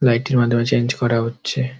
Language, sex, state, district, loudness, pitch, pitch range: Bengali, male, West Bengal, Dakshin Dinajpur, -19 LUFS, 120 Hz, 120-130 Hz